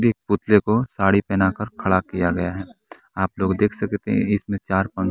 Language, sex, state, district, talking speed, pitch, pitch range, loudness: Hindi, male, Bihar, West Champaran, 200 wpm, 95 Hz, 95-105 Hz, -21 LUFS